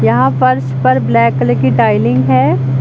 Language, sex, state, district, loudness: Hindi, female, Uttar Pradesh, Lucknow, -12 LUFS